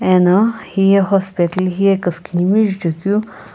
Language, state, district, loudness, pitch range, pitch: Sumi, Nagaland, Kohima, -15 LUFS, 180-200 Hz, 190 Hz